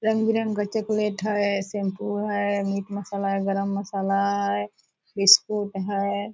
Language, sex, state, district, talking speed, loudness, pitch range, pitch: Hindi, female, Bihar, Purnia, 130 wpm, -24 LUFS, 195-210 Hz, 200 Hz